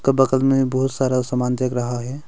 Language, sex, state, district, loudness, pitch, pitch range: Hindi, male, Arunachal Pradesh, Longding, -20 LUFS, 130 Hz, 125-135 Hz